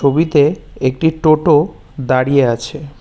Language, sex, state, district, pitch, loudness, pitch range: Bengali, male, West Bengal, Cooch Behar, 145 Hz, -14 LUFS, 130-155 Hz